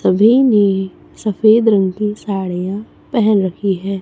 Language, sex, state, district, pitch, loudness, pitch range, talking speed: Hindi, female, Chhattisgarh, Raipur, 205 Hz, -15 LUFS, 190-215 Hz, 135 wpm